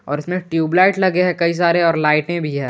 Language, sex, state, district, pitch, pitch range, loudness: Hindi, male, Jharkhand, Garhwa, 170 Hz, 155-180 Hz, -17 LUFS